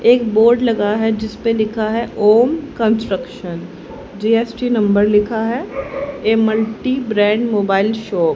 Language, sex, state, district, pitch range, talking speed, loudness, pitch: Hindi, female, Haryana, Charkhi Dadri, 210-235 Hz, 135 wpm, -16 LUFS, 220 Hz